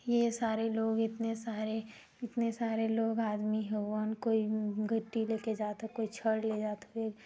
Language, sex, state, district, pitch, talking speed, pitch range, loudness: Hindi, female, Uttar Pradesh, Ghazipur, 225 Hz, 175 wpm, 215-225 Hz, -34 LUFS